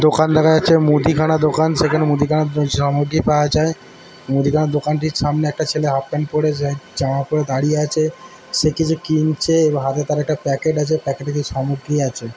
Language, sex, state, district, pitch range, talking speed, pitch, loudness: Bengali, male, West Bengal, Dakshin Dinajpur, 145-155 Hz, 190 wpm, 150 Hz, -18 LUFS